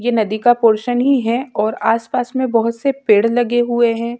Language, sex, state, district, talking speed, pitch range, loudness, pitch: Hindi, female, Chhattisgarh, Sukma, 215 wpm, 225-245 Hz, -16 LUFS, 235 Hz